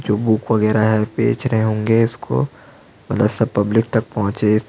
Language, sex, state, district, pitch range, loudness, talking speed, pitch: Hindi, male, Chhattisgarh, Jashpur, 105-115 Hz, -17 LUFS, 155 wpm, 110 Hz